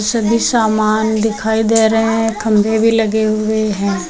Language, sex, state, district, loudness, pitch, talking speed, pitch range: Hindi, female, Uttar Pradesh, Lucknow, -14 LUFS, 220 Hz, 160 wpm, 215-225 Hz